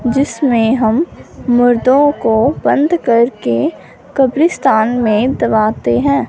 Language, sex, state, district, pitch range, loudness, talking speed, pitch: Hindi, female, Punjab, Fazilka, 225-280 Hz, -13 LUFS, 95 wpm, 245 Hz